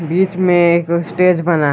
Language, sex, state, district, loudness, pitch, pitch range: Hindi, male, Jharkhand, Garhwa, -14 LUFS, 170 Hz, 170-180 Hz